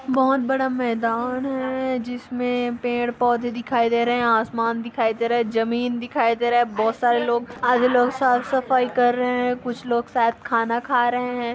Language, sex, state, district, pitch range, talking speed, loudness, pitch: Hindi, female, Chhattisgarh, Kabirdham, 235-250 Hz, 195 wpm, -21 LUFS, 245 Hz